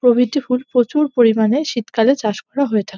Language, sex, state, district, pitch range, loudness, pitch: Bengali, female, West Bengal, North 24 Parganas, 225-275 Hz, -17 LUFS, 245 Hz